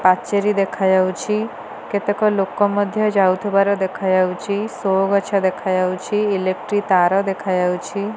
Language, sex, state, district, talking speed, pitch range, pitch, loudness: Odia, female, Odisha, Nuapada, 95 wpm, 185-205 Hz, 195 Hz, -19 LUFS